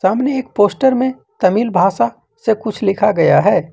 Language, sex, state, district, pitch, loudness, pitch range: Hindi, male, Jharkhand, Ranchi, 210 Hz, -15 LUFS, 190-255 Hz